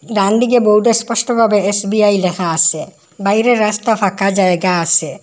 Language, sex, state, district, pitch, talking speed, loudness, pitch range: Bengali, female, Assam, Hailakandi, 205 Hz, 135 wpm, -13 LUFS, 185-225 Hz